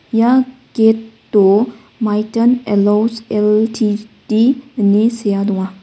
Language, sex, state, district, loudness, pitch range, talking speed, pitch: Garo, female, Meghalaya, West Garo Hills, -15 LUFS, 205-230 Hz, 95 wpm, 220 Hz